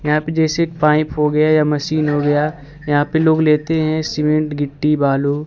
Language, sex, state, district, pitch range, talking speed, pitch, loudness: Hindi, male, Bihar, Kaimur, 145-155 Hz, 195 wpm, 150 Hz, -16 LUFS